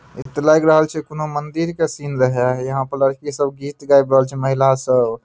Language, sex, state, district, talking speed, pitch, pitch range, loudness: Maithili, male, Bihar, Madhepura, 230 wpm, 140 Hz, 135-150 Hz, -17 LUFS